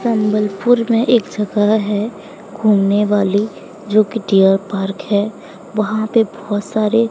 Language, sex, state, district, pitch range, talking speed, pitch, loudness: Hindi, female, Odisha, Sambalpur, 205-220 Hz, 135 wpm, 210 Hz, -16 LUFS